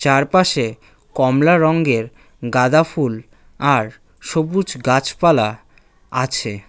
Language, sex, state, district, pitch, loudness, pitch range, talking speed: Bengali, male, West Bengal, Cooch Behar, 130 Hz, -17 LUFS, 115-160 Hz, 70 wpm